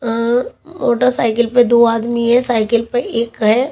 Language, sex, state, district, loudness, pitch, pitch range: Hindi, female, Haryana, Charkhi Dadri, -15 LUFS, 235 Hz, 230-245 Hz